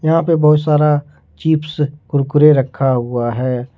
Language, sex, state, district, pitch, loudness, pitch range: Hindi, male, Jharkhand, Ranchi, 150 Hz, -15 LUFS, 130-150 Hz